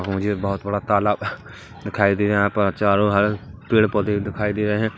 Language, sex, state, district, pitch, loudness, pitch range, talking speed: Hindi, male, Chhattisgarh, Kabirdham, 105 Hz, -21 LUFS, 100-105 Hz, 195 wpm